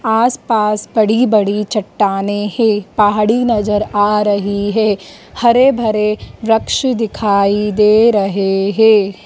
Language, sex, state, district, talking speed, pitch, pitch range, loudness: Hindi, female, Madhya Pradesh, Dhar, 115 wpm, 210 Hz, 205-225 Hz, -14 LUFS